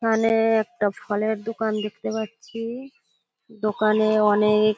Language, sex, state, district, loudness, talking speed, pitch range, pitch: Bengali, female, West Bengal, Kolkata, -23 LUFS, 115 wpm, 210-225 Hz, 220 Hz